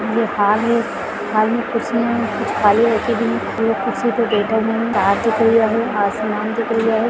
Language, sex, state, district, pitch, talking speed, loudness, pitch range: Hindi, female, Bihar, Lakhisarai, 225 Hz, 70 wpm, -17 LUFS, 215-230 Hz